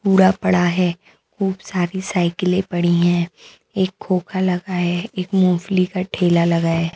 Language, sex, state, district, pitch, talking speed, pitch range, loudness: Hindi, female, Bihar, West Champaran, 180 Hz, 155 wpm, 175-190 Hz, -19 LUFS